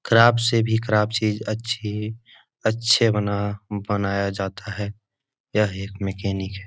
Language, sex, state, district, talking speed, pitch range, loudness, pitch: Hindi, male, Bihar, Jahanabad, 145 wpm, 100-115 Hz, -23 LUFS, 105 Hz